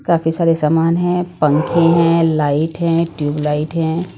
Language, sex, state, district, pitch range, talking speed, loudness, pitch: Hindi, female, Punjab, Pathankot, 150-170 Hz, 145 wpm, -16 LUFS, 165 Hz